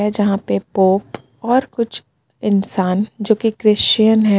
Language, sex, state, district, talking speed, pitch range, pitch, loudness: Hindi, female, Jharkhand, Palamu, 135 wpm, 190-220 Hz, 210 Hz, -16 LUFS